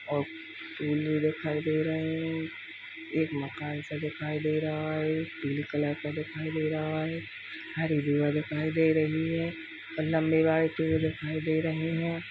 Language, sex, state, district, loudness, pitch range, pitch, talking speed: Hindi, male, Uttar Pradesh, Jalaun, -30 LUFS, 150-160 Hz, 155 Hz, 165 wpm